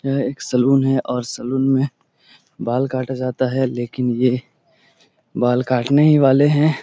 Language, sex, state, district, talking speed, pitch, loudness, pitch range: Hindi, male, Bihar, Supaul, 175 wpm, 130 Hz, -18 LUFS, 125-135 Hz